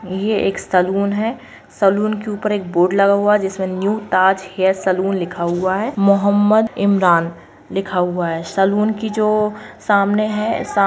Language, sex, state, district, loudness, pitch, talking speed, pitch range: Kumaoni, female, Uttarakhand, Uttarkashi, -17 LUFS, 200 Hz, 175 wpm, 185-210 Hz